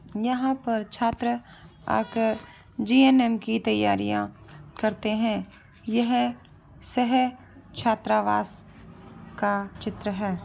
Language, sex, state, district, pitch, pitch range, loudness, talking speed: Hindi, female, Bihar, Saharsa, 225 Hz, 200-240 Hz, -25 LUFS, 90 wpm